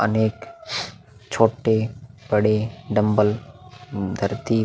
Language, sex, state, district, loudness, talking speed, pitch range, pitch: Hindi, male, Uttar Pradesh, Muzaffarnagar, -22 LUFS, 65 wpm, 105-120 Hz, 110 Hz